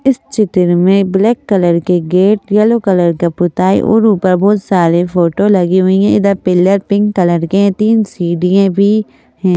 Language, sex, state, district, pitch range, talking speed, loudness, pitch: Hindi, female, Madhya Pradesh, Bhopal, 180-205 Hz, 180 wpm, -11 LUFS, 190 Hz